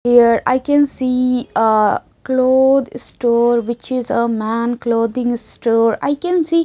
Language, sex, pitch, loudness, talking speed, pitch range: English, female, 245 Hz, -16 LUFS, 145 wpm, 235-260 Hz